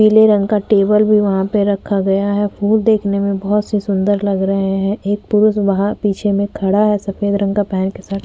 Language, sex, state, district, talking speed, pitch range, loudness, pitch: Hindi, female, Uttar Pradesh, Jyotiba Phule Nagar, 225 wpm, 195-210 Hz, -15 LUFS, 205 Hz